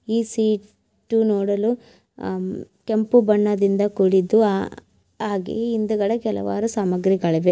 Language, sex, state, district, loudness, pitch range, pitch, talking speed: Kannada, female, Karnataka, Belgaum, -21 LUFS, 190-220 Hz, 210 Hz, 105 wpm